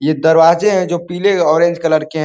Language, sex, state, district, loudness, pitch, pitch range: Hindi, male, Uttar Pradesh, Ghazipur, -13 LUFS, 165 Hz, 155-175 Hz